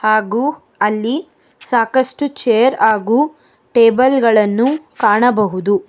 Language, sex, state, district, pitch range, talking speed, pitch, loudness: Kannada, female, Karnataka, Bangalore, 215-260 Hz, 80 wpm, 235 Hz, -15 LUFS